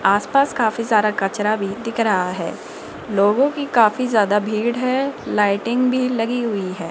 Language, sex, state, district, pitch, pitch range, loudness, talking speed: Hindi, female, Rajasthan, Jaipur, 220 Hz, 205-245 Hz, -19 LUFS, 165 wpm